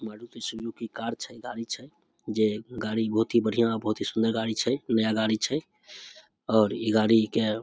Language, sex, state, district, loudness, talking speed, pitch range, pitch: Maithili, male, Bihar, Samastipur, -27 LUFS, 190 wpm, 110-115 Hz, 110 Hz